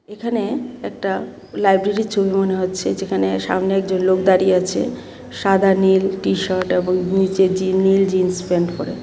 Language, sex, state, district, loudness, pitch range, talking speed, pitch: Bengali, female, Tripura, West Tripura, -18 LUFS, 185-195 Hz, 145 wpm, 190 Hz